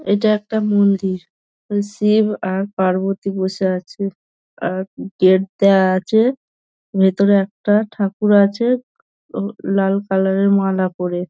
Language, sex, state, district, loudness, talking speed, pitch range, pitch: Bengali, female, West Bengal, Dakshin Dinajpur, -17 LUFS, 120 wpm, 190-210 Hz, 195 Hz